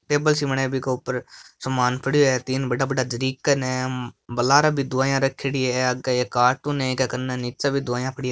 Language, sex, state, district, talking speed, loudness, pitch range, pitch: Marwari, male, Rajasthan, Nagaur, 215 wpm, -22 LUFS, 125-135 Hz, 130 Hz